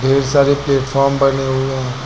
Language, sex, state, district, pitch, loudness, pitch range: Hindi, male, Uttar Pradesh, Lucknow, 135 Hz, -15 LUFS, 135-140 Hz